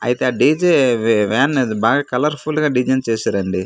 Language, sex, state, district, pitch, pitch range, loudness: Telugu, male, Andhra Pradesh, Manyam, 125 Hz, 115-145 Hz, -16 LUFS